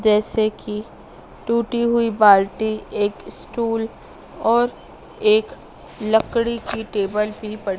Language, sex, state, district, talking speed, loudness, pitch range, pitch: Hindi, female, Madhya Pradesh, Dhar, 110 wpm, -20 LUFS, 210-235 Hz, 220 Hz